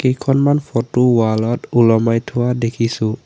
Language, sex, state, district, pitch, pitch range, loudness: Assamese, male, Assam, Sonitpur, 120 Hz, 115-130 Hz, -16 LUFS